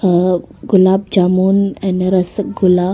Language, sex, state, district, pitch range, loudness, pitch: Hindi, female, Arunachal Pradesh, Longding, 185-195 Hz, -14 LUFS, 185 Hz